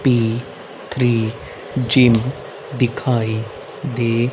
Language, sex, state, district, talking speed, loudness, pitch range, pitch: Hindi, male, Haryana, Rohtak, 70 wpm, -19 LUFS, 115-125 Hz, 120 Hz